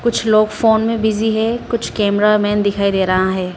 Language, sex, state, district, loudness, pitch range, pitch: Hindi, female, Arunachal Pradesh, Lower Dibang Valley, -16 LUFS, 200-225 Hz, 215 Hz